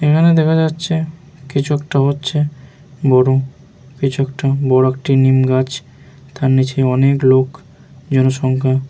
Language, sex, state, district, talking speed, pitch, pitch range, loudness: Bengali, male, West Bengal, Jhargram, 120 wpm, 135 Hz, 130-145 Hz, -15 LUFS